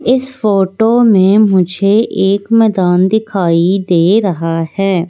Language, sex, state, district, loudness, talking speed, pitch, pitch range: Hindi, female, Madhya Pradesh, Katni, -11 LUFS, 120 wpm, 195 Hz, 180-220 Hz